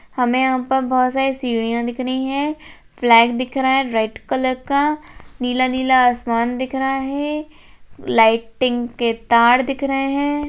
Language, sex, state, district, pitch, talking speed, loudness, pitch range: Hindi, female, Rajasthan, Churu, 255 Hz, 160 wpm, -18 LUFS, 240-270 Hz